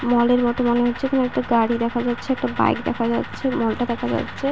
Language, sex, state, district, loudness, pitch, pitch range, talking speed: Bengali, female, West Bengal, Paschim Medinipur, -21 LUFS, 240 Hz, 235-250 Hz, 240 wpm